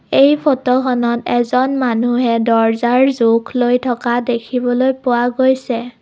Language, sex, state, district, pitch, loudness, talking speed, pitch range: Assamese, female, Assam, Kamrup Metropolitan, 245 Hz, -15 LUFS, 110 wpm, 240-260 Hz